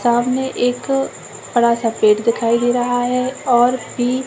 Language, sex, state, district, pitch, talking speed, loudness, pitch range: Hindi, female, Chhattisgarh, Raigarh, 245 Hz, 170 wpm, -17 LUFS, 235-255 Hz